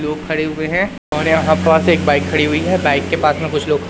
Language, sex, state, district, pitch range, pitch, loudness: Hindi, male, Madhya Pradesh, Umaria, 150-160 Hz, 155 Hz, -15 LUFS